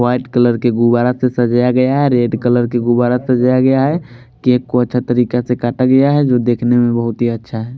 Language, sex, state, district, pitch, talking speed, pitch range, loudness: Hindi, male, Bihar, Patna, 125 Hz, 240 wpm, 120-125 Hz, -14 LUFS